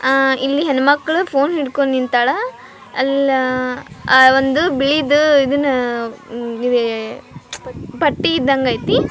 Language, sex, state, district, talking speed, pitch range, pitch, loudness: Kannada, female, Karnataka, Dharwad, 120 wpm, 255-285 Hz, 270 Hz, -16 LUFS